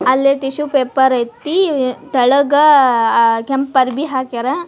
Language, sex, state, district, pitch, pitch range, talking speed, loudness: Kannada, female, Karnataka, Dharwad, 270 Hz, 255-285 Hz, 115 wpm, -14 LUFS